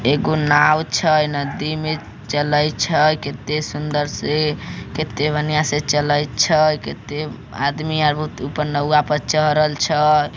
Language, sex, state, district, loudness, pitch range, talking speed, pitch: Maithili, male, Bihar, Samastipur, -19 LUFS, 145-155 Hz, 135 wpm, 150 Hz